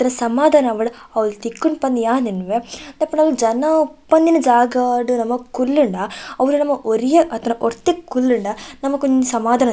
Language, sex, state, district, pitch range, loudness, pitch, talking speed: Tulu, female, Karnataka, Dakshina Kannada, 230-295 Hz, -17 LUFS, 255 Hz, 160 wpm